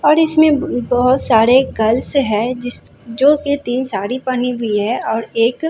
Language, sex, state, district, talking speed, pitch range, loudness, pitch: Hindi, female, Bihar, Katihar, 170 wpm, 230-280 Hz, -15 LUFS, 250 Hz